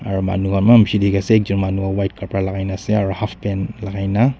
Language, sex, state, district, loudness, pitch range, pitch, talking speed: Nagamese, male, Nagaland, Dimapur, -18 LUFS, 95-105 Hz, 100 Hz, 245 wpm